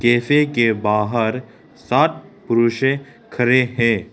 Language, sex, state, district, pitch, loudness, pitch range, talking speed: Hindi, male, Arunachal Pradesh, Lower Dibang Valley, 120 Hz, -18 LUFS, 115-130 Hz, 115 wpm